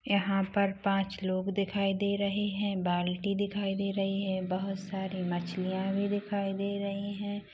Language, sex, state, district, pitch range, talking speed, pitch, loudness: Hindi, female, Chhattisgarh, Rajnandgaon, 190-200 Hz, 165 wpm, 195 Hz, -32 LUFS